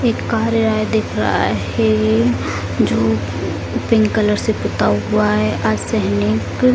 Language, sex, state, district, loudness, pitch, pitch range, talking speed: Hindi, female, Bihar, Jamui, -17 LUFS, 105 Hz, 100-110 Hz, 135 wpm